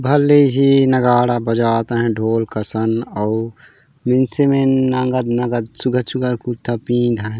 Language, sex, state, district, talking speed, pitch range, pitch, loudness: Chhattisgarhi, male, Chhattisgarh, Raigarh, 140 wpm, 115-130 Hz, 120 Hz, -17 LUFS